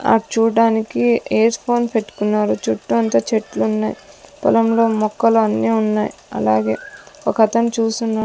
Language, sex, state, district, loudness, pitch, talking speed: Telugu, female, Andhra Pradesh, Sri Satya Sai, -17 LUFS, 220 Hz, 125 wpm